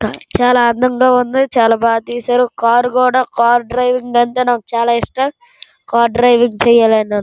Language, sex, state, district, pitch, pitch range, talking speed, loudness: Telugu, female, Andhra Pradesh, Srikakulam, 240 Hz, 235-250 Hz, 135 wpm, -13 LUFS